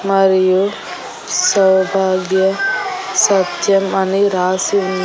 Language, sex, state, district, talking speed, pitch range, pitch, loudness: Telugu, female, Andhra Pradesh, Annamaya, 70 wpm, 190-200 Hz, 195 Hz, -15 LUFS